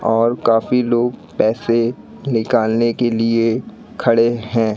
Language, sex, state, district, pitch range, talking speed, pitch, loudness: Hindi, male, Madhya Pradesh, Katni, 115-120 Hz, 115 wpm, 115 Hz, -17 LUFS